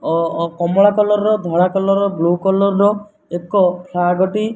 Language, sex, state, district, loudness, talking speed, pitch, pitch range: Odia, male, Odisha, Nuapada, -16 LUFS, 130 wpm, 195 Hz, 175-205 Hz